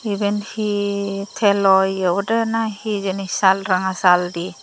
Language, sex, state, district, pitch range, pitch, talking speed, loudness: Chakma, female, Tripura, Dhalai, 190-205 Hz, 200 Hz, 140 wpm, -19 LUFS